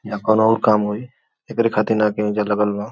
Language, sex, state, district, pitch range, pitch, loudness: Bhojpuri, male, Uttar Pradesh, Gorakhpur, 105-110 Hz, 105 Hz, -18 LUFS